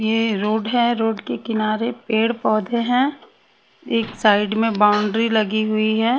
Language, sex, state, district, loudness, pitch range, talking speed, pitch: Hindi, female, Haryana, Rohtak, -19 LUFS, 215-230 Hz, 155 wpm, 220 Hz